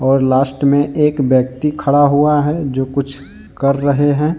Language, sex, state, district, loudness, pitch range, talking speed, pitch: Hindi, male, Jharkhand, Deoghar, -15 LUFS, 135-145 Hz, 175 wpm, 140 Hz